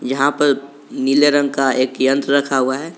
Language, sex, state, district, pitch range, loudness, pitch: Hindi, male, Jharkhand, Garhwa, 135-145 Hz, -16 LUFS, 140 Hz